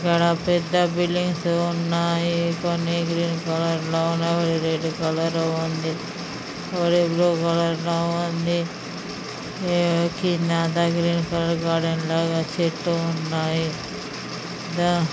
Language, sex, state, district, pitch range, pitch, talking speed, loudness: Telugu, female, Telangana, Karimnagar, 165-170 Hz, 170 Hz, 85 wpm, -23 LUFS